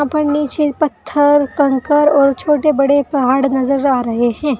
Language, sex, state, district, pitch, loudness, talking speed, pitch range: Hindi, female, Uttar Pradesh, Saharanpur, 285 Hz, -14 LUFS, 155 wpm, 270-295 Hz